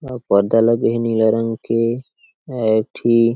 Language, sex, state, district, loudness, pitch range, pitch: Chhattisgarhi, male, Chhattisgarh, Sarguja, -17 LUFS, 110-115 Hz, 115 Hz